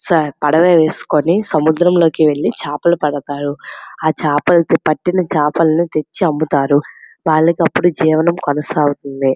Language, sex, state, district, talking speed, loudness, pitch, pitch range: Telugu, female, Andhra Pradesh, Srikakulam, 110 wpm, -15 LUFS, 155 Hz, 150-170 Hz